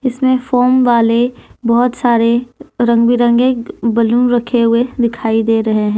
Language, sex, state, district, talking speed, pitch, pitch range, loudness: Hindi, female, Jharkhand, Deoghar, 140 wpm, 240 Hz, 230-245 Hz, -13 LUFS